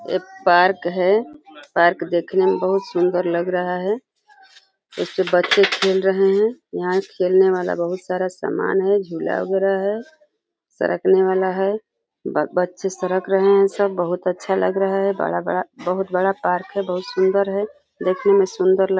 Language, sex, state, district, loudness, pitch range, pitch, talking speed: Hindi, female, Uttar Pradesh, Deoria, -20 LUFS, 180-195 Hz, 190 Hz, 165 wpm